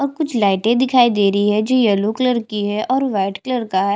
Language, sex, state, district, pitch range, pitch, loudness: Hindi, female, Chhattisgarh, Jashpur, 205-255 Hz, 225 Hz, -17 LUFS